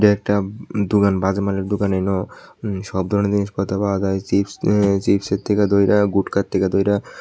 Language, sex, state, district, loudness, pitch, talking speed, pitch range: Bengali, male, Tripura, West Tripura, -19 LUFS, 100 Hz, 150 wpm, 95-100 Hz